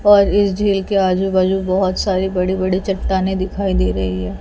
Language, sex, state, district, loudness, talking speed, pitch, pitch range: Hindi, female, Chhattisgarh, Raipur, -17 LUFS, 205 wpm, 190 Hz, 185-195 Hz